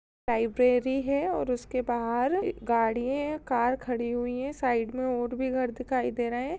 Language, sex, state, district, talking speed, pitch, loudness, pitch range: Hindi, female, Bihar, Purnia, 190 wpm, 250 Hz, -28 LUFS, 240-265 Hz